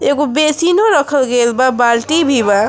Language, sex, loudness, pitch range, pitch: Bhojpuri, female, -12 LUFS, 240-305 Hz, 275 Hz